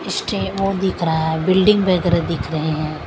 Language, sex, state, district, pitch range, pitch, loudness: Hindi, female, Maharashtra, Mumbai Suburban, 160-190 Hz, 170 Hz, -18 LUFS